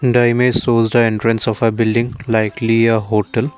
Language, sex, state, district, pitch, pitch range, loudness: English, male, Assam, Kamrup Metropolitan, 115 Hz, 115-120 Hz, -15 LUFS